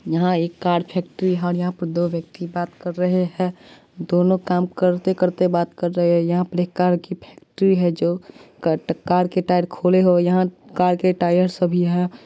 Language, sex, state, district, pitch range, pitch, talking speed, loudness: Maithili, female, Bihar, Supaul, 175-180 Hz, 180 Hz, 195 wpm, -20 LUFS